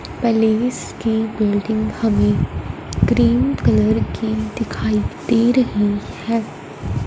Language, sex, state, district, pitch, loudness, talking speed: Hindi, female, Punjab, Fazilka, 205 Hz, -19 LUFS, 95 wpm